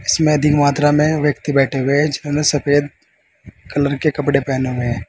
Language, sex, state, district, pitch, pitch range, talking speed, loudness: Hindi, male, Uttar Pradesh, Saharanpur, 145 Hz, 135-150 Hz, 190 wpm, -16 LUFS